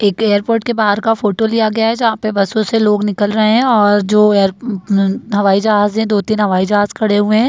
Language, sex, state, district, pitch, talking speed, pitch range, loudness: Hindi, female, Bihar, Jahanabad, 210 Hz, 240 wpm, 205-220 Hz, -14 LUFS